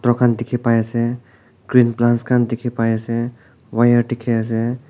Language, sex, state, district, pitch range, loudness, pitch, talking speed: Nagamese, male, Nagaland, Kohima, 115-120 Hz, -18 LUFS, 120 Hz, 170 wpm